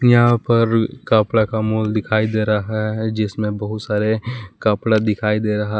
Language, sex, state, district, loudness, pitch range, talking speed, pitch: Hindi, male, Jharkhand, Palamu, -18 LUFS, 105-110 Hz, 175 wpm, 110 Hz